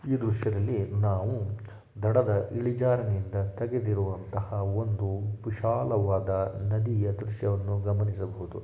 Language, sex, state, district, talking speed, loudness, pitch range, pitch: Kannada, male, Karnataka, Shimoga, 85 wpm, -29 LUFS, 100-110 Hz, 105 Hz